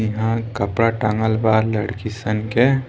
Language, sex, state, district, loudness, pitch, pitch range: Bhojpuri, male, Bihar, East Champaran, -20 LUFS, 110 Hz, 110-115 Hz